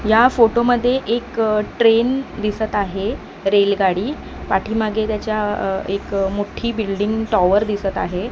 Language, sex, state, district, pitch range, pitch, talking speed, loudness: Marathi, female, Maharashtra, Mumbai Suburban, 200-230 Hz, 215 Hz, 125 wpm, -19 LUFS